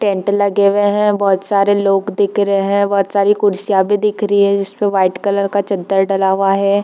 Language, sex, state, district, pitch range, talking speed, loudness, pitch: Hindi, female, Bihar, Darbhanga, 195-205 Hz, 220 wpm, -14 LUFS, 200 Hz